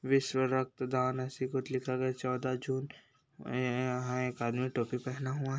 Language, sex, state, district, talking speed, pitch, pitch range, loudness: Hindi, male, Chhattisgarh, Bastar, 195 wpm, 130 Hz, 125-130 Hz, -34 LUFS